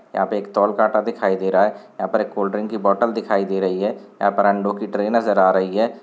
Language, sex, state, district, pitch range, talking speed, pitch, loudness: Hindi, male, Chhattisgarh, Sarguja, 95-105 Hz, 280 wpm, 100 Hz, -20 LUFS